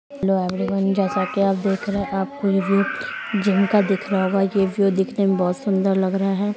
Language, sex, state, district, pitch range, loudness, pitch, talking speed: Hindi, female, Uttar Pradesh, Muzaffarnagar, 195-200 Hz, -21 LUFS, 195 Hz, 230 wpm